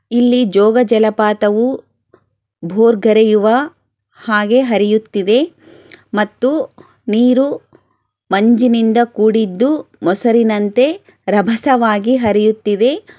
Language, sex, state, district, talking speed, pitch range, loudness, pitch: Kannada, female, Karnataka, Chamarajanagar, 60 wpm, 210-250 Hz, -13 LUFS, 230 Hz